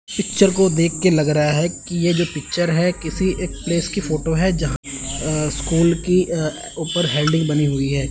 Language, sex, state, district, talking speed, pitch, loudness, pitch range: Hindi, male, Chandigarh, Chandigarh, 205 wpm, 165 Hz, -19 LUFS, 150-175 Hz